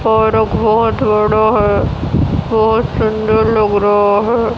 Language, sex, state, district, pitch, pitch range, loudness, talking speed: Hindi, female, Haryana, Rohtak, 220 Hz, 210-220 Hz, -13 LUFS, 105 wpm